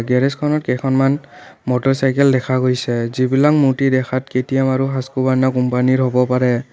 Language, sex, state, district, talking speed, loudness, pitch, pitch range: Assamese, male, Assam, Kamrup Metropolitan, 100 wpm, -17 LUFS, 130 Hz, 125-135 Hz